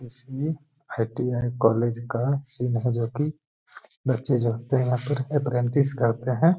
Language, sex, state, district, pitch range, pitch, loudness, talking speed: Hindi, male, Bihar, Gaya, 120-140 Hz, 125 Hz, -25 LUFS, 145 wpm